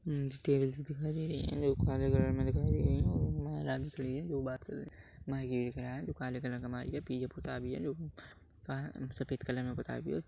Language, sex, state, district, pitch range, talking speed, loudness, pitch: Hindi, male, Chhattisgarh, Kabirdham, 125-140 Hz, 240 wpm, -36 LUFS, 135 Hz